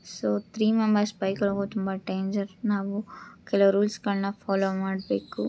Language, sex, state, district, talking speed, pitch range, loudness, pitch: Kannada, female, Karnataka, Shimoga, 155 wpm, 190-205 Hz, -27 LUFS, 200 Hz